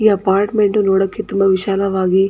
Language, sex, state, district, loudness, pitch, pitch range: Kannada, female, Karnataka, Dakshina Kannada, -15 LUFS, 195 Hz, 195-210 Hz